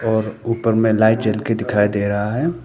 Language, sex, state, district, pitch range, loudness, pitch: Hindi, male, Arunachal Pradesh, Papum Pare, 105-115 Hz, -18 LUFS, 110 Hz